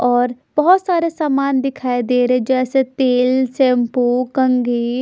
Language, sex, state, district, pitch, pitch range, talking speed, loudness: Hindi, female, Chhattisgarh, Raipur, 255 Hz, 245-270 Hz, 145 wpm, -16 LUFS